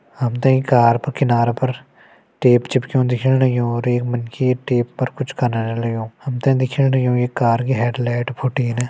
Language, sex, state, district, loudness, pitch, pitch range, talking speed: Garhwali, male, Uttarakhand, Uttarkashi, -18 LUFS, 125 Hz, 120-130 Hz, 180 wpm